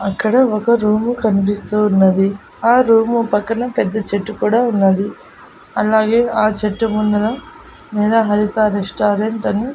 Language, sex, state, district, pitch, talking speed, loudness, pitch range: Telugu, female, Andhra Pradesh, Annamaya, 215 Hz, 125 wpm, -16 LUFS, 205-230 Hz